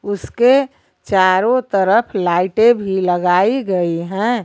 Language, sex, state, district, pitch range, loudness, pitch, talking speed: Hindi, female, Jharkhand, Garhwa, 185-235 Hz, -15 LUFS, 195 Hz, 110 wpm